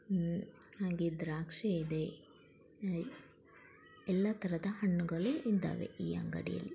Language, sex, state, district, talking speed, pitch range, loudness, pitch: Kannada, female, Karnataka, Chamarajanagar, 90 wpm, 165-200 Hz, -38 LUFS, 175 Hz